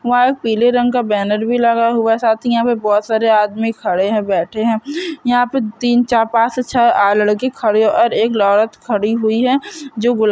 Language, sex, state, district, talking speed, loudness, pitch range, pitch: Hindi, female, Chhattisgarh, Korba, 215 wpm, -15 LUFS, 215-245 Hz, 230 Hz